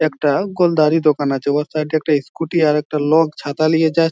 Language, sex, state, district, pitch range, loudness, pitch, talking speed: Bengali, male, West Bengal, Jhargram, 150-160 Hz, -17 LUFS, 155 Hz, 220 wpm